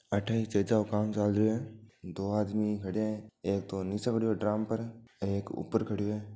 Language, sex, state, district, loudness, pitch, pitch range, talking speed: Marwari, male, Rajasthan, Nagaur, -32 LUFS, 105 Hz, 100-110 Hz, 215 wpm